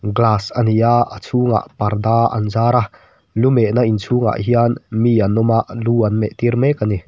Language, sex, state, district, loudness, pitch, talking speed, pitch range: Mizo, male, Mizoram, Aizawl, -16 LUFS, 115 Hz, 220 wpm, 105-120 Hz